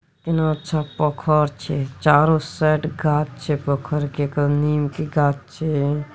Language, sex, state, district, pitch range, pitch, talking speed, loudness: Hindi, male, Bihar, Araria, 145-155 Hz, 150 Hz, 135 wpm, -21 LUFS